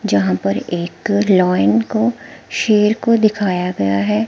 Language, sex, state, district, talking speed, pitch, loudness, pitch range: Hindi, female, Himachal Pradesh, Shimla, 140 wpm, 200 Hz, -16 LUFS, 170-215 Hz